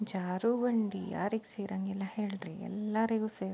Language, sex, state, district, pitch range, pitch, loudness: Kannada, female, Karnataka, Belgaum, 195-220 Hz, 205 Hz, -34 LUFS